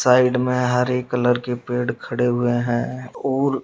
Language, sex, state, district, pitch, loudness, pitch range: Hindi, male, Uttar Pradesh, Muzaffarnagar, 125 Hz, -21 LUFS, 120-125 Hz